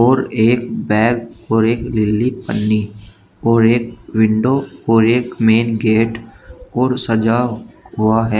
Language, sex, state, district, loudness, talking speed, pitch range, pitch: Hindi, male, Uttar Pradesh, Shamli, -16 LUFS, 130 wpm, 110-120 Hz, 115 Hz